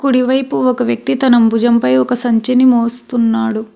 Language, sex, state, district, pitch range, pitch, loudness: Telugu, female, Telangana, Hyderabad, 225-255 Hz, 235 Hz, -13 LUFS